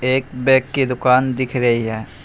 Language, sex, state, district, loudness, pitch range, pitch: Hindi, male, Uttar Pradesh, Shamli, -17 LUFS, 120-130 Hz, 125 Hz